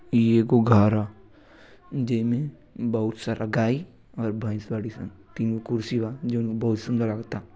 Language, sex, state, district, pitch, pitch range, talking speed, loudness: Bhojpuri, male, Uttar Pradesh, Gorakhpur, 115 Hz, 110-120 Hz, 150 wpm, -25 LUFS